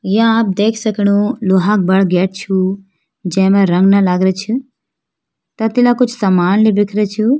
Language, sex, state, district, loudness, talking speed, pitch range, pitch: Hindi, female, Uttarakhand, Uttarkashi, -14 LUFS, 160 wpm, 190-220 Hz, 200 Hz